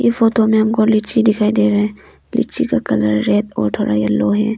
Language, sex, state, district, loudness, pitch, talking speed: Hindi, female, Arunachal Pradesh, Longding, -16 LUFS, 210 Hz, 210 wpm